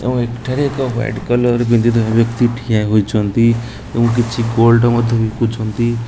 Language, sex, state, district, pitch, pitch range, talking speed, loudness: Odia, male, Odisha, Nuapada, 115 Hz, 115-120 Hz, 130 wpm, -15 LUFS